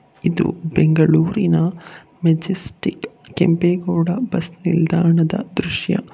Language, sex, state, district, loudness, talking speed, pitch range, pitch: Kannada, male, Karnataka, Bangalore, -18 LUFS, 70 wpm, 165-180 Hz, 170 Hz